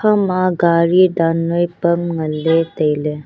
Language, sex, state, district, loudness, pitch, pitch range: Wancho, female, Arunachal Pradesh, Longding, -16 LUFS, 170 Hz, 160-175 Hz